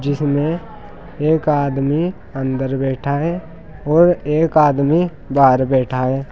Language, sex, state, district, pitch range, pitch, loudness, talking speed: Hindi, male, Uttar Pradesh, Saharanpur, 135-160 Hz, 145 Hz, -17 LUFS, 115 wpm